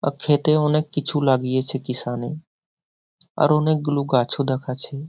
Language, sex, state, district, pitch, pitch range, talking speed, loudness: Bengali, male, West Bengal, Jhargram, 140 Hz, 130-150 Hz, 130 wpm, -21 LUFS